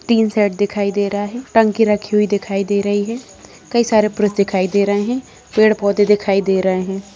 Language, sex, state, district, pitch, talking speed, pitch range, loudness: Hindi, female, Bihar, Darbhanga, 205 Hz, 210 wpm, 200-215 Hz, -16 LUFS